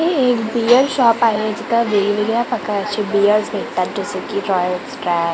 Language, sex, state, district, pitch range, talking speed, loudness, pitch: Marathi, female, Maharashtra, Gondia, 200-235 Hz, 170 wpm, -17 LUFS, 215 Hz